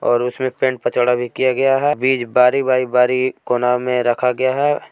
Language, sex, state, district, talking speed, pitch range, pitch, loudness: Hindi, male, Jharkhand, Palamu, 205 wpm, 125-130 Hz, 125 Hz, -17 LUFS